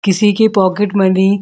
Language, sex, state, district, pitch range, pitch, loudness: Hindi, female, Uttar Pradesh, Muzaffarnagar, 190-205 Hz, 200 Hz, -13 LUFS